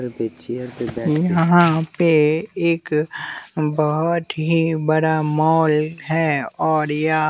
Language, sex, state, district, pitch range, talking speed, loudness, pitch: Hindi, male, Bihar, West Champaran, 150-165 Hz, 80 wpm, -19 LUFS, 155 Hz